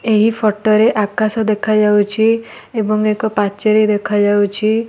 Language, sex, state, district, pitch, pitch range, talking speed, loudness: Odia, female, Odisha, Malkangiri, 215 Hz, 210-220 Hz, 100 wpm, -15 LUFS